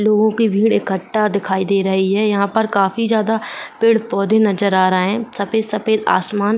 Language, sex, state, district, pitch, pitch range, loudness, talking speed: Hindi, female, Uttar Pradesh, Jyotiba Phule Nagar, 210 Hz, 195-220 Hz, -16 LUFS, 180 wpm